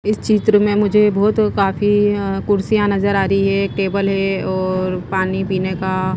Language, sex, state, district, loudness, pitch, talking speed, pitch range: Hindi, female, Himachal Pradesh, Shimla, -17 LUFS, 195 Hz, 185 wpm, 190-205 Hz